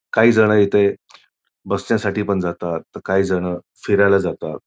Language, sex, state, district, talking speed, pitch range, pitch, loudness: Marathi, male, Maharashtra, Pune, 130 wpm, 90-105 Hz, 100 Hz, -18 LUFS